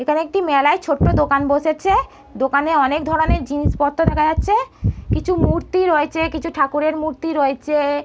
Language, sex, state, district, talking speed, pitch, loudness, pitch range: Bengali, female, West Bengal, North 24 Parganas, 140 wpm, 305 Hz, -18 LUFS, 285-325 Hz